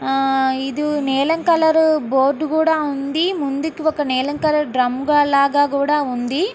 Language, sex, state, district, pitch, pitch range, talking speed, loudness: Telugu, female, Andhra Pradesh, Guntur, 290 Hz, 270-310 Hz, 120 wpm, -18 LUFS